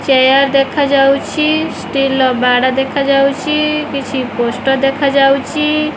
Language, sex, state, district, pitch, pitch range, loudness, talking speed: Odia, female, Odisha, Khordha, 275 Hz, 265-290 Hz, -13 LUFS, 90 wpm